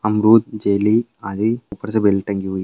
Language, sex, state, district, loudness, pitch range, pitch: Hindi, male, Andhra Pradesh, Anantapur, -18 LUFS, 100-110 Hz, 105 Hz